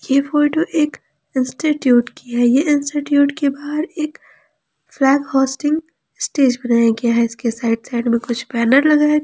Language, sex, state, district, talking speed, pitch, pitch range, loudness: Hindi, female, Jharkhand, Palamu, 160 wpm, 270 Hz, 240-295 Hz, -17 LUFS